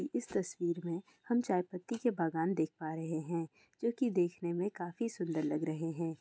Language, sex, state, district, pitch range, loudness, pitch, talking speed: Hindi, female, Bihar, Kishanganj, 165-195 Hz, -36 LUFS, 175 Hz, 205 wpm